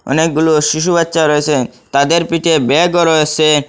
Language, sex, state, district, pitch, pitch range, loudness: Bengali, male, Assam, Hailakandi, 155 Hz, 150-165 Hz, -12 LUFS